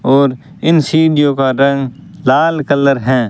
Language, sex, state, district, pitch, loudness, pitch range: Hindi, male, Rajasthan, Bikaner, 140 Hz, -13 LUFS, 135-160 Hz